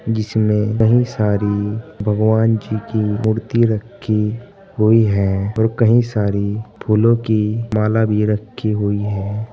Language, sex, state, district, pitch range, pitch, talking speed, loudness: Hindi, male, Uttar Pradesh, Saharanpur, 105-115 Hz, 110 Hz, 125 wpm, -17 LUFS